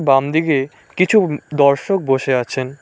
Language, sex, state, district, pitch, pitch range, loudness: Bengali, male, West Bengal, Cooch Behar, 140 Hz, 135-160 Hz, -16 LUFS